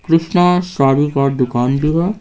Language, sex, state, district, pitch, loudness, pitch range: Hindi, male, Bihar, Patna, 150 Hz, -15 LUFS, 135-175 Hz